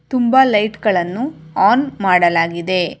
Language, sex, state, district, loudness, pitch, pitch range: Kannada, female, Karnataka, Bangalore, -15 LUFS, 195 Hz, 175-250 Hz